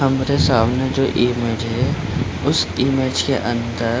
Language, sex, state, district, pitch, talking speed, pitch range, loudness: Hindi, male, Bihar, Supaul, 125 Hz, 150 wpm, 115-135 Hz, -19 LUFS